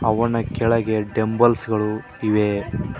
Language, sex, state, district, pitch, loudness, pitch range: Kannada, male, Karnataka, Koppal, 110 Hz, -21 LUFS, 105-115 Hz